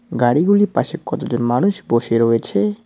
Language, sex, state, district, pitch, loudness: Bengali, male, West Bengal, Cooch Behar, 130 Hz, -17 LUFS